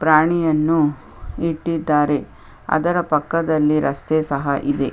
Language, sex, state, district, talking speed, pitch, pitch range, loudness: Kannada, female, Karnataka, Chamarajanagar, 95 wpm, 155 Hz, 145-165 Hz, -19 LUFS